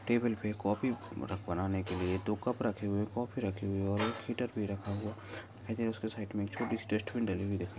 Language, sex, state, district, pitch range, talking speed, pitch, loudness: Hindi, male, Goa, North and South Goa, 100-115 Hz, 225 wpm, 105 Hz, -36 LUFS